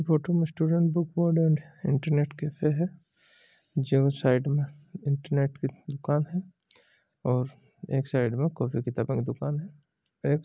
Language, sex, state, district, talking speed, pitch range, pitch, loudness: Marwari, male, Rajasthan, Nagaur, 155 wpm, 140-170 Hz, 150 Hz, -28 LUFS